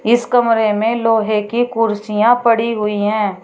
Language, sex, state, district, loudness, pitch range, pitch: Hindi, female, Uttar Pradesh, Shamli, -15 LUFS, 210-235 Hz, 225 Hz